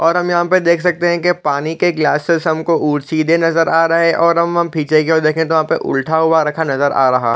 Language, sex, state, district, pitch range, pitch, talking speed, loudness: Hindi, male, Chhattisgarh, Raigarh, 155-170 Hz, 160 Hz, 260 wpm, -14 LUFS